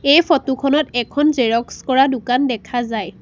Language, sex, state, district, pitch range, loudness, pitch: Assamese, female, Assam, Sonitpur, 240-280 Hz, -17 LUFS, 260 Hz